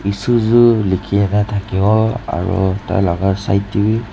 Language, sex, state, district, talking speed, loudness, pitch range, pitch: Nagamese, male, Nagaland, Dimapur, 130 wpm, -15 LUFS, 95-110 Hz, 100 Hz